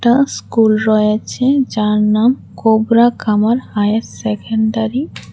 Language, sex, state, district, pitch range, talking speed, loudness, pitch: Bengali, female, Tripura, West Tripura, 210-240 Hz, 100 wpm, -15 LUFS, 220 Hz